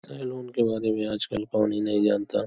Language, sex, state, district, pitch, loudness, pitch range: Hindi, male, Uttar Pradesh, Hamirpur, 110 Hz, -26 LUFS, 105-115 Hz